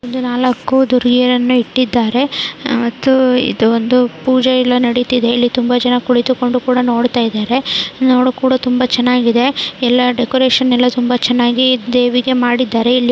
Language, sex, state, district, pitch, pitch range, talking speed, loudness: Kannada, female, Karnataka, Dharwad, 250 Hz, 245-255 Hz, 130 wpm, -13 LUFS